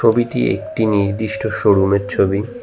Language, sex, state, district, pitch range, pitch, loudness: Bengali, male, West Bengal, Cooch Behar, 100-115 Hz, 110 Hz, -17 LUFS